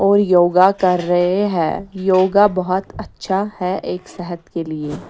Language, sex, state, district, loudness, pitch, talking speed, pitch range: Hindi, female, Maharashtra, Mumbai Suburban, -17 LUFS, 185 Hz, 155 wpm, 175-195 Hz